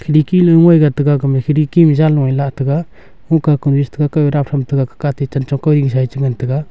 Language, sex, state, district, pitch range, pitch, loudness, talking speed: Wancho, male, Arunachal Pradesh, Longding, 140-155 Hz, 145 Hz, -13 LUFS, 305 wpm